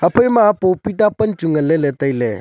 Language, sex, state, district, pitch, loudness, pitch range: Wancho, male, Arunachal Pradesh, Longding, 185 Hz, -16 LUFS, 155-215 Hz